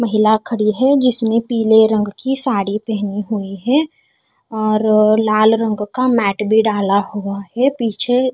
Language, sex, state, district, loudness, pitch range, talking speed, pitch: Hindi, female, Haryana, Charkhi Dadri, -16 LUFS, 210-240 Hz, 150 wpm, 220 Hz